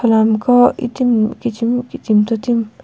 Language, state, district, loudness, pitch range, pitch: Sumi, Nagaland, Kohima, -15 LUFS, 220-245 Hz, 235 Hz